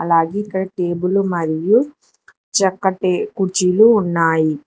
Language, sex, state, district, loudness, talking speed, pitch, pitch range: Telugu, female, Telangana, Hyderabad, -17 LUFS, 90 wpm, 185 Hz, 170-200 Hz